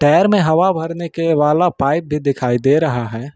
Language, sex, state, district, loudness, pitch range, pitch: Hindi, male, Jharkhand, Ranchi, -16 LUFS, 135-165 Hz, 150 Hz